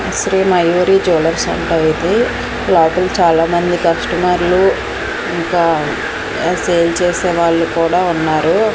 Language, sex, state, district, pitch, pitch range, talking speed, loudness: Telugu, female, Andhra Pradesh, Manyam, 175 Hz, 165-180 Hz, 95 wpm, -14 LUFS